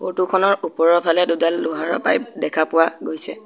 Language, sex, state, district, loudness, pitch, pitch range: Assamese, male, Assam, Sonitpur, -18 LUFS, 165 Hz, 160-175 Hz